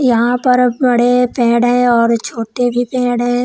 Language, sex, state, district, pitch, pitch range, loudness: Hindi, female, Uttar Pradesh, Lalitpur, 245 Hz, 240-250 Hz, -13 LUFS